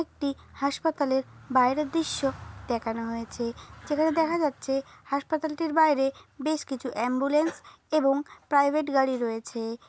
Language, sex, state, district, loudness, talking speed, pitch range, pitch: Bengali, female, West Bengal, Dakshin Dinajpur, -27 LUFS, 115 wpm, 255-305 Hz, 280 Hz